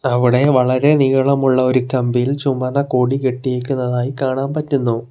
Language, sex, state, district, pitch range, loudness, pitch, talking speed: Malayalam, male, Kerala, Kollam, 125-135 Hz, -16 LUFS, 130 Hz, 115 wpm